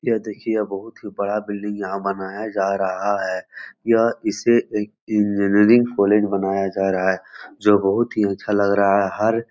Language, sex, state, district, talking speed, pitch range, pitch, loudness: Hindi, male, Bihar, Jahanabad, 190 wpm, 100-110 Hz, 100 Hz, -20 LUFS